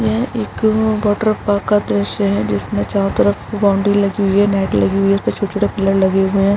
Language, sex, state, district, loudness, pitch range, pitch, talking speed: Hindi, female, Bihar, Araria, -16 LUFS, 190-210 Hz, 200 Hz, 230 wpm